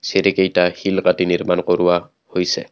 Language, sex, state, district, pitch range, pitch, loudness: Assamese, male, Assam, Kamrup Metropolitan, 90-95 Hz, 90 Hz, -18 LUFS